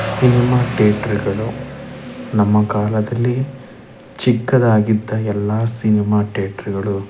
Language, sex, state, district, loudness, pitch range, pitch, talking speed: Kannada, male, Karnataka, Chamarajanagar, -17 LUFS, 105-125 Hz, 110 Hz, 95 wpm